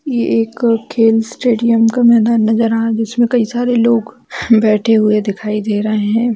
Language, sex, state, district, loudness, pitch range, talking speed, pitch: Hindi, female, Bihar, Darbhanga, -13 LUFS, 220-235 Hz, 200 wpm, 225 Hz